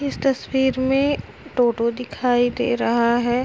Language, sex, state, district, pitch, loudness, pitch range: Hindi, female, Uttar Pradesh, Etah, 245 Hz, -21 LUFS, 240-265 Hz